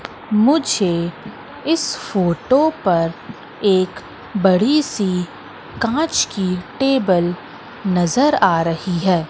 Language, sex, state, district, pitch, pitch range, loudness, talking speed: Hindi, female, Madhya Pradesh, Katni, 195 Hz, 175-260 Hz, -18 LUFS, 90 wpm